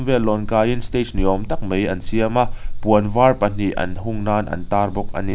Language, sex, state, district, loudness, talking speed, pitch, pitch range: Mizo, male, Mizoram, Aizawl, -20 LUFS, 235 wpm, 105 Hz, 95-115 Hz